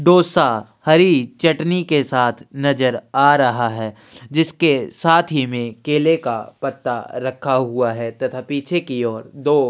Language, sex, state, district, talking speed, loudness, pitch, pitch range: Hindi, male, Chhattisgarh, Sukma, 150 wpm, -18 LUFS, 140 Hz, 125-160 Hz